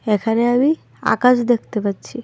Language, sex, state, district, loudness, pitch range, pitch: Bengali, female, Tripura, Dhalai, -18 LUFS, 215-250 Hz, 240 Hz